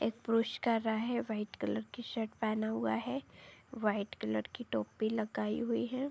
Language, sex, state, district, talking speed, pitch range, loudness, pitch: Hindi, female, Uttar Pradesh, Deoria, 175 wpm, 215-240 Hz, -36 LUFS, 225 Hz